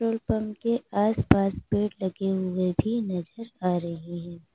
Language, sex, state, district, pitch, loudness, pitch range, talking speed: Hindi, female, Uttar Pradesh, Lalitpur, 195 Hz, -27 LUFS, 175-220 Hz, 160 wpm